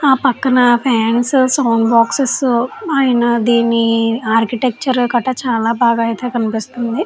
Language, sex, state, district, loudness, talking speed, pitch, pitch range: Telugu, female, Andhra Pradesh, Chittoor, -14 LUFS, 110 wpm, 240 Hz, 230-260 Hz